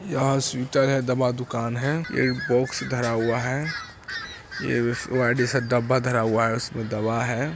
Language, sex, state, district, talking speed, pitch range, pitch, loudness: Hindi, male, Bihar, Jamui, 160 wpm, 120-135 Hz, 125 Hz, -24 LUFS